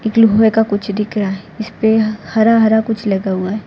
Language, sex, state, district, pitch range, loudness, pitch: Hindi, female, Gujarat, Valsad, 205-220 Hz, -15 LUFS, 220 Hz